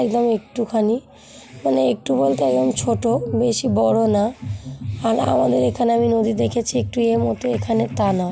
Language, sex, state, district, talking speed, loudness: Bengali, female, West Bengal, Jhargram, 145 wpm, -19 LUFS